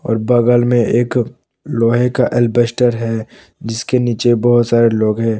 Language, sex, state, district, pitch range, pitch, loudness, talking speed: Hindi, male, Jharkhand, Palamu, 115-120 Hz, 120 Hz, -14 LUFS, 155 wpm